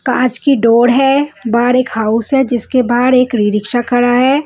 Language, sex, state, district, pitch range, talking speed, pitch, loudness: Hindi, female, Bihar, West Champaran, 235-265 Hz, 190 wpm, 245 Hz, -12 LUFS